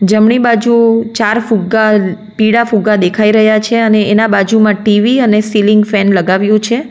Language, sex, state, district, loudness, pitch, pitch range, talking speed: Gujarati, female, Gujarat, Valsad, -10 LUFS, 215 Hz, 210-225 Hz, 155 wpm